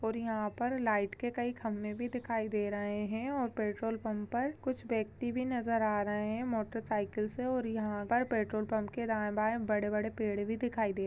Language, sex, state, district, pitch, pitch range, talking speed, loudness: Hindi, female, Chhattisgarh, Bastar, 220 Hz, 210-240 Hz, 210 wpm, -35 LUFS